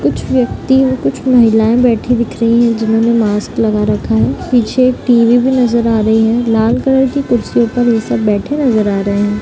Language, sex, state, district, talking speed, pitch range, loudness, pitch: Hindi, female, Bihar, Gaya, 210 wpm, 200-240 Hz, -12 LUFS, 225 Hz